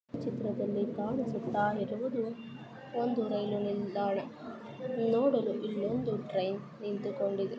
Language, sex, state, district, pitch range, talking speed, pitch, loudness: Kannada, female, Karnataka, Dharwad, 205-230 Hz, 85 wpm, 210 Hz, -33 LUFS